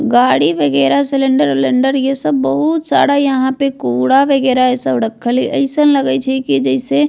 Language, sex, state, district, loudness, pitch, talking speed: Bajjika, female, Bihar, Vaishali, -13 LUFS, 255 Hz, 185 wpm